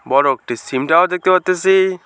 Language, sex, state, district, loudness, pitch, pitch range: Bengali, male, West Bengal, Alipurduar, -15 LUFS, 185 Hz, 175-185 Hz